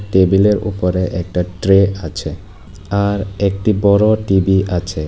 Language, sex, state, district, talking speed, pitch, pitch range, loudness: Bengali, male, Tripura, West Tripura, 120 wpm, 95 Hz, 90-100 Hz, -15 LUFS